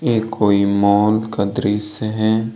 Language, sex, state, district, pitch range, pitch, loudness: Hindi, male, Jharkhand, Deoghar, 100-110 Hz, 105 Hz, -17 LUFS